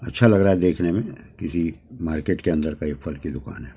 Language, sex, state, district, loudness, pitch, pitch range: Hindi, male, Delhi, New Delhi, -23 LUFS, 85 Hz, 80-100 Hz